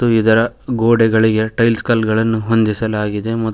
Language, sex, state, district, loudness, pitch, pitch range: Kannada, male, Karnataka, Koppal, -15 LUFS, 110 Hz, 110-115 Hz